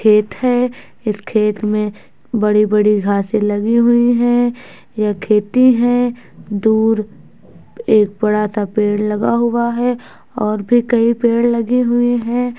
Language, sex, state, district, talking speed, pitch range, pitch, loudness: Hindi, female, Bihar, Muzaffarpur, 130 wpm, 210-240 Hz, 225 Hz, -15 LUFS